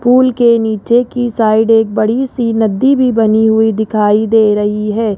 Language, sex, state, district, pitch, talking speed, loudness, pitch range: Hindi, female, Rajasthan, Jaipur, 220 Hz, 185 wpm, -12 LUFS, 215-240 Hz